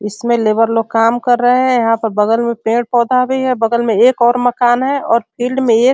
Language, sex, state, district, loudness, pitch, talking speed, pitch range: Hindi, female, Bihar, Sitamarhi, -13 LUFS, 235 Hz, 275 wpm, 225-250 Hz